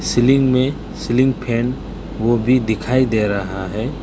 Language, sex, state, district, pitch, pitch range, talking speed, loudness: Hindi, male, West Bengal, Alipurduar, 120 Hz, 110-130 Hz, 150 wpm, -18 LUFS